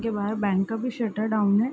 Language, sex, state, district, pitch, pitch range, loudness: Hindi, female, Bihar, Darbhanga, 215 Hz, 205-225 Hz, -25 LUFS